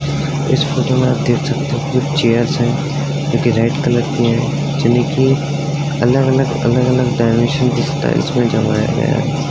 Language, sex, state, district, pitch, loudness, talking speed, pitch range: Hindi, male, Uttar Pradesh, Varanasi, 135 Hz, -15 LUFS, 170 wpm, 120-145 Hz